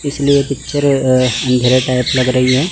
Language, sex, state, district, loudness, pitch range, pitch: Hindi, male, Chandigarh, Chandigarh, -13 LUFS, 125-140 Hz, 130 Hz